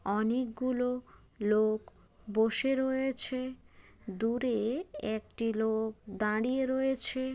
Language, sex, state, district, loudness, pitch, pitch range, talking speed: Bengali, female, West Bengal, Jalpaiguri, -32 LUFS, 235 Hz, 220-260 Hz, 80 wpm